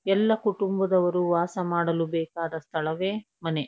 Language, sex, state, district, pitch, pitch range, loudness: Kannada, female, Karnataka, Dharwad, 175 Hz, 165-195 Hz, -26 LUFS